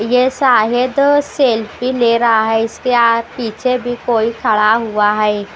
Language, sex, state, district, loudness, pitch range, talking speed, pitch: Hindi, female, Maharashtra, Washim, -14 LUFS, 220-250 Hz, 140 wpm, 235 Hz